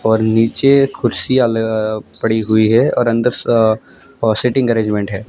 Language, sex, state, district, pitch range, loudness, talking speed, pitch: Hindi, male, Gujarat, Gandhinagar, 110-125 Hz, -15 LUFS, 125 wpm, 115 Hz